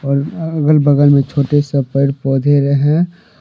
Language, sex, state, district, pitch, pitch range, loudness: Hindi, male, Jharkhand, Deoghar, 145 Hz, 140-150 Hz, -14 LUFS